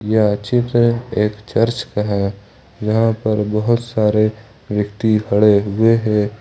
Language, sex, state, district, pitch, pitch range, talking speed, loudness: Hindi, male, Jharkhand, Ranchi, 110 Hz, 105-115 Hz, 130 wpm, -17 LUFS